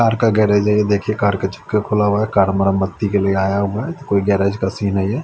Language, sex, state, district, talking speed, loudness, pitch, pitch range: Hindi, male, Chandigarh, Chandigarh, 285 wpm, -17 LUFS, 100 Hz, 100-105 Hz